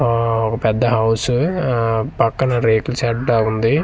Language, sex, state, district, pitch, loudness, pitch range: Telugu, male, Andhra Pradesh, Manyam, 115 Hz, -17 LUFS, 110-125 Hz